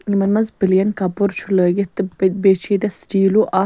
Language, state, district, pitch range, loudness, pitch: Kashmiri, Punjab, Kapurthala, 190-205 Hz, -17 LUFS, 195 Hz